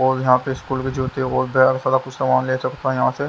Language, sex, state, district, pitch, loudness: Hindi, male, Haryana, Jhajjar, 130 Hz, -19 LUFS